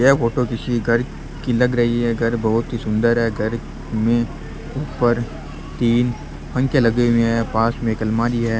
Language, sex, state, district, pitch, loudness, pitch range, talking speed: Rajasthani, male, Rajasthan, Churu, 115 Hz, -20 LUFS, 115-120 Hz, 180 wpm